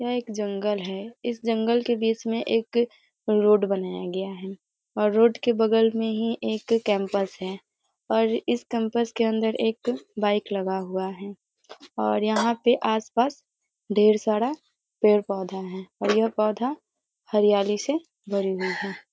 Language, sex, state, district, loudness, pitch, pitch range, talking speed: Hindi, female, Bihar, Muzaffarpur, -25 LUFS, 215 Hz, 200-230 Hz, 155 wpm